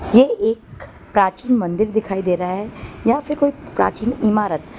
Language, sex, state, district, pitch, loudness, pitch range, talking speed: Hindi, female, Gujarat, Valsad, 220 Hz, -19 LUFS, 195-245 Hz, 165 wpm